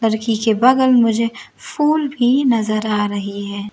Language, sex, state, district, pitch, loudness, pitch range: Hindi, female, Arunachal Pradesh, Lower Dibang Valley, 225 Hz, -17 LUFS, 215-255 Hz